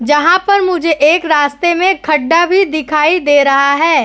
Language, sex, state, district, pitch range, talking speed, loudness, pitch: Hindi, female, Uttar Pradesh, Etah, 295-350 Hz, 175 wpm, -11 LUFS, 320 Hz